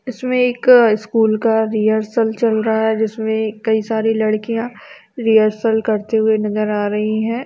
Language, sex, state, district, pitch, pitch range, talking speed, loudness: Hindi, female, Uttar Pradesh, Jalaun, 220 Hz, 215-230 Hz, 155 wpm, -16 LUFS